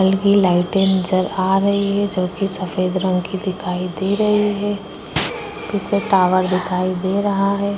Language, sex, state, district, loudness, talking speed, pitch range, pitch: Hindi, female, Maharashtra, Chandrapur, -19 LUFS, 170 wpm, 185-200 Hz, 190 Hz